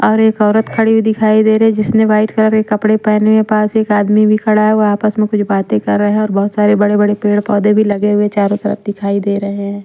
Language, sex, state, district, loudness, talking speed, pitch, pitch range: Hindi, female, Punjab, Pathankot, -12 LUFS, 275 wpm, 210 Hz, 205-215 Hz